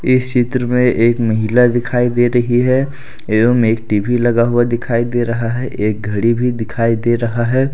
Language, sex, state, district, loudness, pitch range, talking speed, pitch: Hindi, male, Jharkhand, Deoghar, -15 LUFS, 115-125 Hz, 195 wpm, 120 Hz